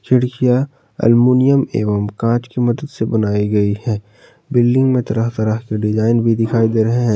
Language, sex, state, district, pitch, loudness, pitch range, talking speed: Hindi, male, Jharkhand, Palamu, 115 Hz, -16 LUFS, 110-125 Hz, 175 wpm